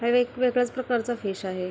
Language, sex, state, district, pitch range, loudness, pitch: Marathi, female, Maharashtra, Aurangabad, 195-245 Hz, -26 LUFS, 240 Hz